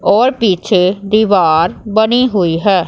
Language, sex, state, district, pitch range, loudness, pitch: Hindi, female, Punjab, Pathankot, 185-220 Hz, -12 LUFS, 205 Hz